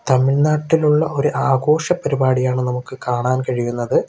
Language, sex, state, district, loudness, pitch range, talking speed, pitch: Malayalam, male, Kerala, Kollam, -18 LUFS, 125-150 Hz, 100 wpm, 135 Hz